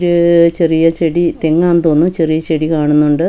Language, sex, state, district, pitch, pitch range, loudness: Malayalam, female, Kerala, Wayanad, 165 Hz, 160-170 Hz, -12 LUFS